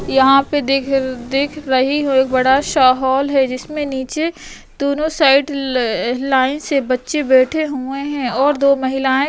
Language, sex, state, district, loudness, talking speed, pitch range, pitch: Hindi, female, Uttar Pradesh, Etah, -16 LUFS, 175 wpm, 260-285 Hz, 270 Hz